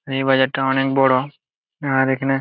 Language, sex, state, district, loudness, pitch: Bengali, male, West Bengal, Jalpaiguri, -18 LUFS, 135 Hz